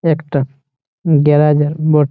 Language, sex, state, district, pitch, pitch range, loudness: Bengali, male, West Bengal, Malda, 150 Hz, 140-155 Hz, -14 LUFS